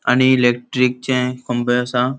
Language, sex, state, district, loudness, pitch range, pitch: Konkani, male, Goa, North and South Goa, -17 LUFS, 125-130 Hz, 125 Hz